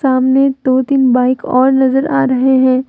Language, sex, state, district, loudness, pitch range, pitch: Hindi, female, Jharkhand, Deoghar, -12 LUFS, 255-270 Hz, 260 Hz